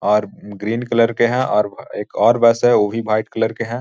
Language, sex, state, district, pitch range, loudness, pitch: Hindi, male, Bihar, Jahanabad, 105-120 Hz, -17 LUFS, 115 Hz